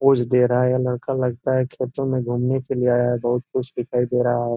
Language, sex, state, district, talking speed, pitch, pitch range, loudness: Hindi, male, Bihar, Gopalganj, 275 wpm, 125 Hz, 120-130 Hz, -21 LUFS